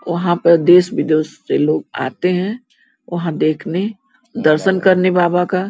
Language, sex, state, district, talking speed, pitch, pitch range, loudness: Hindi, female, Uttar Pradesh, Gorakhpur, 145 wpm, 180 Hz, 170-190 Hz, -16 LUFS